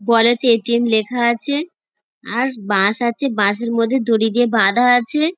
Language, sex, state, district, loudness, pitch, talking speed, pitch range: Bengali, female, West Bengal, Dakshin Dinajpur, -16 LUFS, 235 Hz, 155 wpm, 225-245 Hz